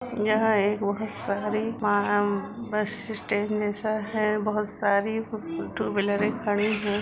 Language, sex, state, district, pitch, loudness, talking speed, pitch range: Hindi, female, Uttar Pradesh, Jalaun, 210 Hz, -26 LUFS, 130 wpm, 205-215 Hz